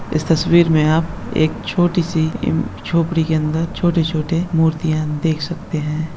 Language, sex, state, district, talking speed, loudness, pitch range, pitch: Hindi, male, Bihar, Begusarai, 145 wpm, -18 LUFS, 155-165 Hz, 160 Hz